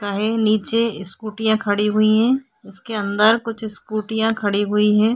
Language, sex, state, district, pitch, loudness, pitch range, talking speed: Hindi, female, Maharashtra, Chandrapur, 215 Hz, -19 LUFS, 205-225 Hz, 165 wpm